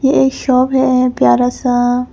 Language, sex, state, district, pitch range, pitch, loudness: Hindi, female, Arunachal Pradesh, Papum Pare, 245-265 Hz, 255 Hz, -13 LUFS